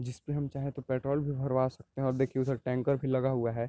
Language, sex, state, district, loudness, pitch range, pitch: Hindi, male, Bihar, Sitamarhi, -32 LUFS, 130-140 Hz, 135 Hz